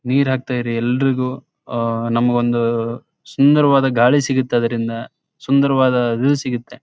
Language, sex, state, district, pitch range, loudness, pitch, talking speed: Kannada, male, Karnataka, Raichur, 120-135 Hz, -17 LUFS, 125 Hz, 95 wpm